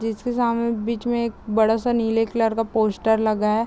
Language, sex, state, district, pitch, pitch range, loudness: Hindi, female, Chhattisgarh, Raigarh, 225 Hz, 220-235 Hz, -22 LUFS